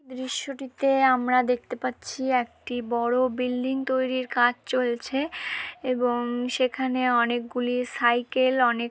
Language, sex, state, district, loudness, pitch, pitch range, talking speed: Bengali, female, West Bengal, Dakshin Dinajpur, -25 LUFS, 250 Hz, 245-260 Hz, 100 wpm